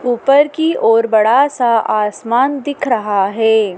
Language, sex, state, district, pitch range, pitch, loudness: Hindi, female, Madhya Pradesh, Dhar, 215-280 Hz, 235 Hz, -14 LUFS